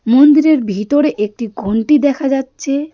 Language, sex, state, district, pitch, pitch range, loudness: Bengali, female, West Bengal, Darjeeling, 275 Hz, 230-295 Hz, -14 LUFS